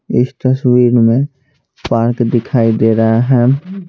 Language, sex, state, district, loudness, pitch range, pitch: Hindi, male, Bihar, Patna, -13 LUFS, 115-135 Hz, 120 Hz